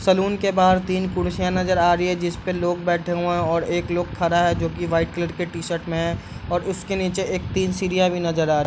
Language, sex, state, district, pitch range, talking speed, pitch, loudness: Hindi, male, Bihar, Bhagalpur, 170-185 Hz, 265 wpm, 175 Hz, -22 LUFS